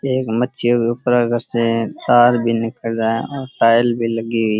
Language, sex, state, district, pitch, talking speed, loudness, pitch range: Rajasthani, male, Rajasthan, Churu, 120 Hz, 210 wpm, -17 LUFS, 115-120 Hz